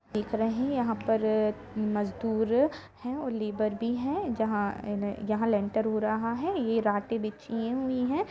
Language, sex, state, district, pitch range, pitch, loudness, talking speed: Hindi, female, Jharkhand, Jamtara, 215-245 Hz, 225 Hz, -29 LUFS, 175 wpm